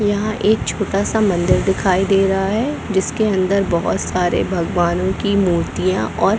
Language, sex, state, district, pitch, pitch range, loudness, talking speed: Hindi, female, Chhattisgarh, Bilaspur, 195 Hz, 185-205 Hz, -17 LUFS, 150 wpm